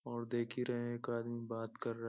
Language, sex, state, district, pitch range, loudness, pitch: Hindi, male, Uttar Pradesh, Ghazipur, 115-120 Hz, -41 LUFS, 120 Hz